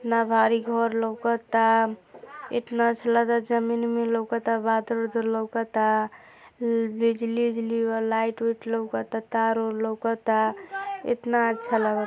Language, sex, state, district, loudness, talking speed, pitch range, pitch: Hindi, female, Uttar Pradesh, Gorakhpur, -25 LUFS, 145 wpm, 225-235 Hz, 230 Hz